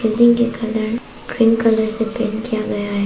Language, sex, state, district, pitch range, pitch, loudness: Hindi, female, Arunachal Pradesh, Papum Pare, 220-230 Hz, 225 Hz, -17 LUFS